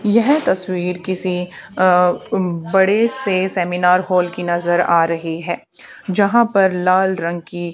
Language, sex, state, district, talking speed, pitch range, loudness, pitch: Hindi, female, Haryana, Charkhi Dadri, 140 wpm, 175-190 Hz, -17 LUFS, 180 Hz